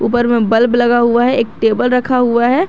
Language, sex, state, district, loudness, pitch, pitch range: Hindi, female, Jharkhand, Garhwa, -13 LUFS, 240 Hz, 235-245 Hz